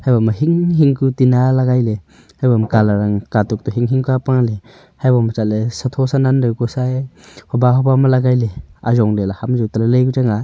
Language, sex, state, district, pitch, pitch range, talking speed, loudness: Wancho, male, Arunachal Pradesh, Longding, 125 Hz, 110-130 Hz, 235 wpm, -16 LUFS